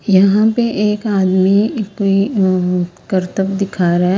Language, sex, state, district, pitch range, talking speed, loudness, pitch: Hindi, female, Haryana, Rohtak, 185-210 Hz, 130 wpm, -15 LUFS, 195 Hz